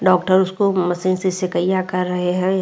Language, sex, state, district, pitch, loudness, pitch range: Hindi, female, Uttar Pradesh, Muzaffarnagar, 185 Hz, -19 LUFS, 180-185 Hz